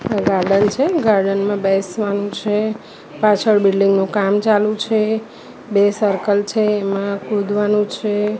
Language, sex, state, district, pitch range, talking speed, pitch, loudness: Gujarati, female, Gujarat, Gandhinagar, 200-215 Hz, 135 wpm, 205 Hz, -17 LUFS